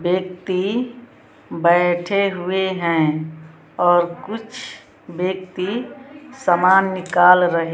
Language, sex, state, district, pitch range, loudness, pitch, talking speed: Hindi, female, Bihar, West Champaran, 175-200 Hz, -18 LUFS, 180 Hz, 85 wpm